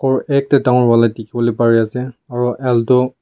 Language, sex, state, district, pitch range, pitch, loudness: Nagamese, male, Nagaland, Kohima, 115-130 Hz, 125 Hz, -15 LUFS